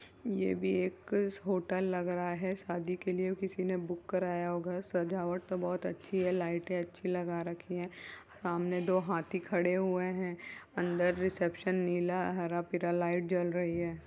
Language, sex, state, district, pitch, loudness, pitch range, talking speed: Hindi, female, Uttar Pradesh, Jyotiba Phule Nagar, 180 Hz, -34 LUFS, 175-185 Hz, 170 wpm